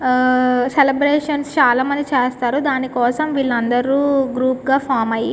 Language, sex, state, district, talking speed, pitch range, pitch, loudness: Telugu, female, Andhra Pradesh, Guntur, 135 wpm, 250-280 Hz, 260 Hz, -17 LUFS